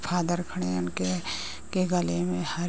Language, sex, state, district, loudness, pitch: Hindi, female, Uttar Pradesh, Ghazipur, -29 LUFS, 155 Hz